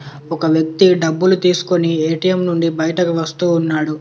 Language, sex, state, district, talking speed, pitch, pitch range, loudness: Telugu, male, Telangana, Komaram Bheem, 135 wpm, 165 Hz, 160-180 Hz, -15 LUFS